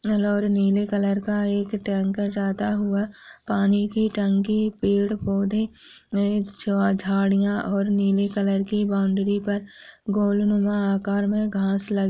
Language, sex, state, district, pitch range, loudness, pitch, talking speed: Hindi, female, Uttarakhand, Tehri Garhwal, 200-205 Hz, -23 LUFS, 200 Hz, 135 wpm